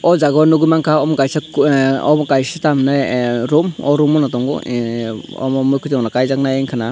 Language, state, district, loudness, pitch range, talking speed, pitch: Kokborok, Tripura, Dhalai, -15 LUFS, 130-150 Hz, 200 wpm, 135 Hz